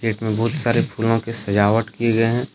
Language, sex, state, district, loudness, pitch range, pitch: Hindi, male, Jharkhand, Deoghar, -20 LUFS, 110-115 Hz, 115 Hz